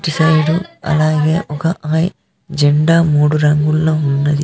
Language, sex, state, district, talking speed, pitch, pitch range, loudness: Telugu, male, Telangana, Mahabubabad, 95 wpm, 155 Hz, 150-160 Hz, -14 LUFS